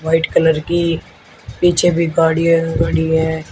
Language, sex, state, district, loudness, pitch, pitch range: Hindi, male, Uttar Pradesh, Shamli, -15 LUFS, 165 Hz, 160-170 Hz